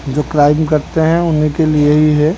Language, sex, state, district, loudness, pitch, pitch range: Hindi, male, Odisha, Khordha, -13 LUFS, 155 Hz, 150-160 Hz